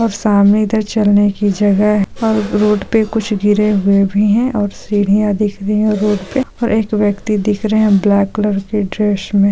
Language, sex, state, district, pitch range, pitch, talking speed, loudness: Hindi, female, Bihar, Supaul, 205-215 Hz, 210 Hz, 195 wpm, -14 LUFS